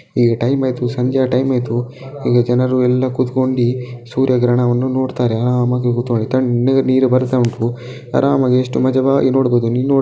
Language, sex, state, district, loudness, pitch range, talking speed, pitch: Kannada, male, Karnataka, Dakshina Kannada, -16 LUFS, 120-130 Hz, 145 wpm, 125 Hz